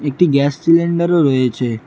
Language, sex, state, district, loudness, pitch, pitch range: Bengali, female, West Bengal, Alipurduar, -15 LUFS, 145 Hz, 130-170 Hz